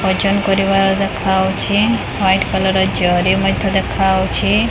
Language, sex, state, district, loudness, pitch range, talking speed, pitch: Odia, female, Odisha, Khordha, -15 LUFS, 190-195 Hz, 100 wpm, 195 Hz